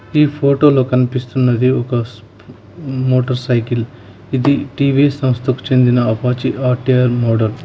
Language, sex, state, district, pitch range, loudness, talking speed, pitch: Telugu, male, Telangana, Hyderabad, 120-130 Hz, -15 LUFS, 110 wpm, 125 Hz